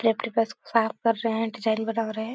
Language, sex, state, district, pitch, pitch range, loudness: Hindi, female, Bihar, Supaul, 225 Hz, 220-230 Hz, -26 LUFS